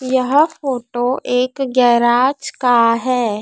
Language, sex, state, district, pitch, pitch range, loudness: Hindi, female, Madhya Pradesh, Dhar, 250 Hz, 240-260 Hz, -16 LUFS